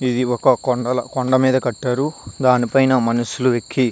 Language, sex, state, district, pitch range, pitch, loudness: Telugu, male, Andhra Pradesh, Visakhapatnam, 120-130 Hz, 125 Hz, -18 LUFS